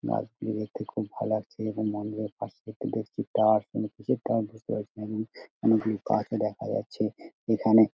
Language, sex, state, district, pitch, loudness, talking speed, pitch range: Bengali, male, West Bengal, Dakshin Dinajpur, 110 Hz, -29 LUFS, 180 wpm, 105-110 Hz